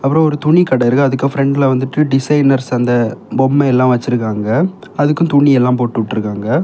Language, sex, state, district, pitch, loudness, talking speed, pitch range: Tamil, male, Tamil Nadu, Kanyakumari, 135 Hz, -13 LUFS, 170 wpm, 125-145 Hz